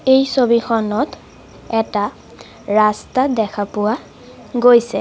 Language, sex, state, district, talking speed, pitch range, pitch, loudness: Assamese, female, Assam, Sonitpur, 85 wpm, 215-250 Hz, 235 Hz, -17 LUFS